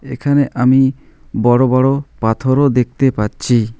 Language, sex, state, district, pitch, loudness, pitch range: Bengali, male, West Bengal, Alipurduar, 130 Hz, -14 LUFS, 120-135 Hz